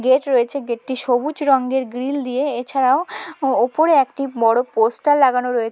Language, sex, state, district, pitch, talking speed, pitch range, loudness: Bengali, female, West Bengal, Dakshin Dinajpur, 260 Hz, 155 wpm, 245-275 Hz, -18 LUFS